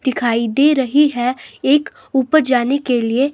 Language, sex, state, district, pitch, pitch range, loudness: Hindi, female, Himachal Pradesh, Shimla, 265 Hz, 245-285 Hz, -16 LUFS